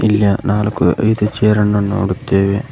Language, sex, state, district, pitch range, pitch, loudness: Kannada, male, Karnataka, Koppal, 100-105 Hz, 105 Hz, -15 LUFS